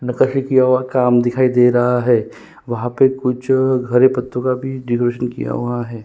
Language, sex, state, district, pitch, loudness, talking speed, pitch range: Hindi, male, Chhattisgarh, Kabirdham, 125 Hz, -16 LUFS, 190 wpm, 120-130 Hz